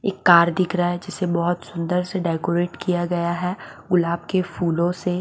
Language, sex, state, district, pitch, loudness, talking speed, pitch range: Hindi, female, Haryana, Charkhi Dadri, 175 Hz, -21 LUFS, 195 wpm, 170-180 Hz